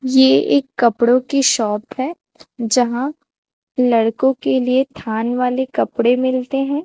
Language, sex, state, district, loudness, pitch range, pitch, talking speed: Hindi, female, Chhattisgarh, Raipur, -17 LUFS, 235-265 Hz, 255 Hz, 130 wpm